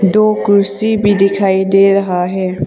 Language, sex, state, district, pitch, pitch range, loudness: Hindi, female, Arunachal Pradesh, Longding, 195 Hz, 190-205 Hz, -12 LUFS